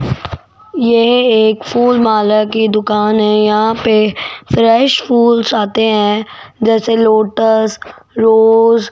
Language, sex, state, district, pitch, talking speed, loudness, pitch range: Hindi, female, Rajasthan, Jaipur, 225 Hz, 115 wpm, -11 LUFS, 215-230 Hz